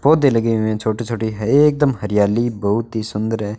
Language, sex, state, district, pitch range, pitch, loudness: Hindi, male, Rajasthan, Bikaner, 110-120 Hz, 110 Hz, -18 LUFS